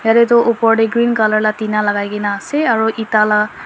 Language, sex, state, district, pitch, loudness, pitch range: Nagamese, female, Nagaland, Dimapur, 220 Hz, -14 LUFS, 210-230 Hz